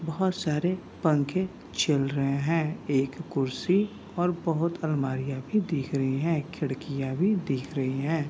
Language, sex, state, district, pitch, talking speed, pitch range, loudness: Hindi, male, Bihar, Kishanganj, 155 Hz, 145 wpm, 135-170 Hz, -28 LUFS